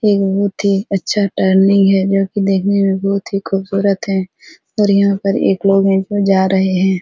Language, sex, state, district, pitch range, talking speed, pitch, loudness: Hindi, female, Bihar, Supaul, 190-200 Hz, 205 wpm, 195 Hz, -14 LUFS